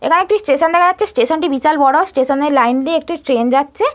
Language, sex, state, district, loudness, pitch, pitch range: Bengali, female, West Bengal, Malda, -14 LUFS, 310 Hz, 275-350 Hz